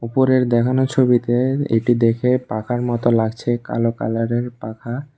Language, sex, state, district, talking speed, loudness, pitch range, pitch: Bengali, male, Tripura, West Tripura, 140 wpm, -19 LUFS, 115-125 Hz, 120 Hz